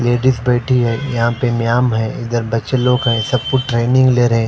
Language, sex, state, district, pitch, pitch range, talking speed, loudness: Hindi, male, Punjab, Fazilka, 120 Hz, 115-125 Hz, 215 wpm, -15 LUFS